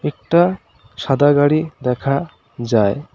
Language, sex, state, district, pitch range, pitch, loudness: Bengali, male, West Bengal, Cooch Behar, 125-155 Hz, 145 Hz, -17 LUFS